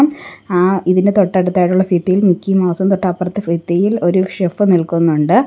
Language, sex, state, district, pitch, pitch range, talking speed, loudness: Malayalam, female, Kerala, Kollam, 185 Hz, 180-195 Hz, 120 wpm, -14 LUFS